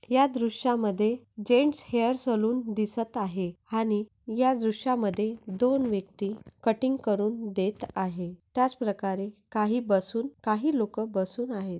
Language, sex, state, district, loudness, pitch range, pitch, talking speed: Marathi, female, Maharashtra, Nagpur, -28 LUFS, 205-245 Hz, 220 Hz, 120 wpm